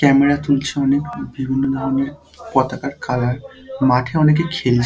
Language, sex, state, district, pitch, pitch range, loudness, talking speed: Bengali, male, West Bengal, Dakshin Dinajpur, 135 Hz, 135-145 Hz, -18 LUFS, 135 wpm